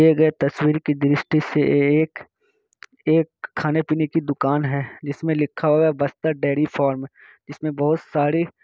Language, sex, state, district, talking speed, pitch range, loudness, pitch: Hindi, male, Bihar, Kishanganj, 175 wpm, 145-160 Hz, -21 LUFS, 150 Hz